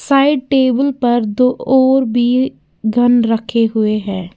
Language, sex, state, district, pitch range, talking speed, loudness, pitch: Hindi, female, Uttar Pradesh, Lalitpur, 220-260 Hz, 135 wpm, -14 LUFS, 240 Hz